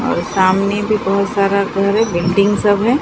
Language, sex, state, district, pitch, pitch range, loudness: Hindi, female, Bihar, Katihar, 200 Hz, 195-210 Hz, -15 LUFS